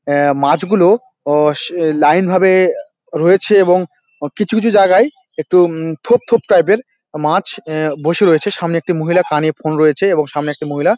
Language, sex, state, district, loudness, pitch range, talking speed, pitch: Bengali, male, West Bengal, Dakshin Dinajpur, -14 LUFS, 155-200 Hz, 170 wpm, 175 Hz